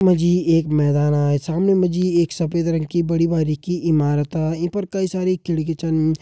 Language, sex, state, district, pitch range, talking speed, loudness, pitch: Hindi, male, Uttarakhand, Uttarkashi, 155-175 Hz, 195 wpm, -19 LUFS, 165 Hz